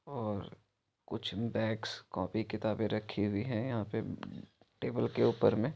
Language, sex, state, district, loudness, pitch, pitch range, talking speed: Maithili, male, Bihar, Supaul, -35 LUFS, 110 Hz, 105-110 Hz, 145 wpm